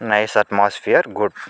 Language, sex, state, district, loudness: Telugu, male, Andhra Pradesh, Chittoor, -17 LUFS